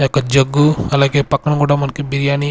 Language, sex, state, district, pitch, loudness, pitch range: Telugu, male, Andhra Pradesh, Sri Satya Sai, 140 Hz, -15 LUFS, 140-145 Hz